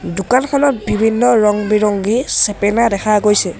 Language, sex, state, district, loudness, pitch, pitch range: Assamese, male, Assam, Sonitpur, -14 LUFS, 210 Hz, 205-235 Hz